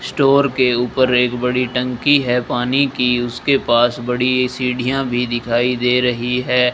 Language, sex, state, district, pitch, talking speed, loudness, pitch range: Hindi, male, Rajasthan, Bikaner, 125 Hz, 160 wpm, -16 LUFS, 125-130 Hz